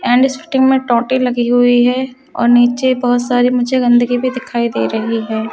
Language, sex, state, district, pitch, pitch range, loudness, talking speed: Hindi, female, Haryana, Charkhi Dadri, 245 Hz, 240-255 Hz, -14 LUFS, 195 wpm